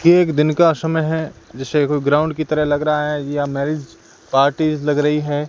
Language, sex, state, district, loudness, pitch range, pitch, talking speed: Hindi, male, Rajasthan, Bikaner, -18 LUFS, 145-155 Hz, 150 Hz, 220 wpm